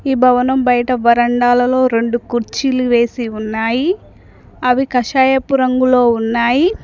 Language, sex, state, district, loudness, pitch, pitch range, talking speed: Telugu, female, Telangana, Mahabubabad, -14 LUFS, 250 Hz, 235-260 Hz, 105 wpm